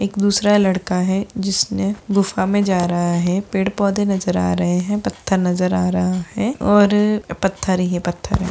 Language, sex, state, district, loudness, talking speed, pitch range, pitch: Hindi, female, Bihar, Begusarai, -18 LUFS, 185 wpm, 180-205 Hz, 190 Hz